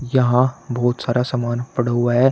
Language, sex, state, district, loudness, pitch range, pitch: Hindi, male, Uttar Pradesh, Shamli, -19 LUFS, 120-130 Hz, 125 Hz